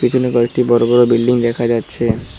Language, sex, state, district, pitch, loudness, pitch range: Bengali, male, West Bengal, Cooch Behar, 120 Hz, -14 LUFS, 115-120 Hz